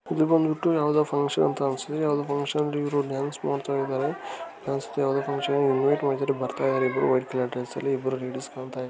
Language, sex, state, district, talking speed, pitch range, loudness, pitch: Kannada, male, Karnataka, Gulbarga, 155 wpm, 135-145 Hz, -26 LUFS, 140 Hz